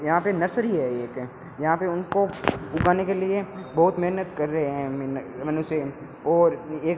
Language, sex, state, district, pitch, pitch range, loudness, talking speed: Hindi, male, Rajasthan, Bikaner, 165 Hz, 150-185 Hz, -25 LUFS, 180 wpm